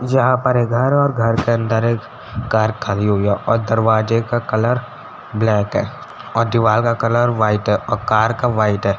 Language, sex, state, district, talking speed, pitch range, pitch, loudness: Hindi, male, Uttar Pradesh, Etah, 205 wpm, 110-120 Hz, 115 Hz, -17 LUFS